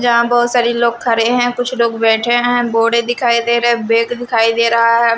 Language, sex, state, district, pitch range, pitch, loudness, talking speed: Hindi, female, Maharashtra, Washim, 230-240 Hz, 235 Hz, -14 LUFS, 220 wpm